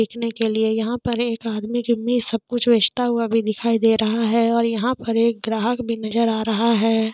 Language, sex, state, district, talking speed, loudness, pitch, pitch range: Hindi, female, Jharkhand, Sahebganj, 220 wpm, -20 LUFS, 230 Hz, 225-235 Hz